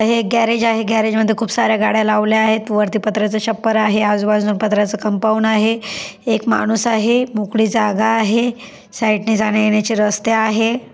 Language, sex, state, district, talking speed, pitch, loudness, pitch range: Marathi, female, Maharashtra, Pune, 155 wpm, 220 Hz, -16 LUFS, 215-225 Hz